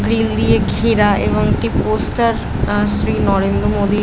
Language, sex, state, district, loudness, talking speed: Bengali, female, West Bengal, Jhargram, -16 LUFS, 165 wpm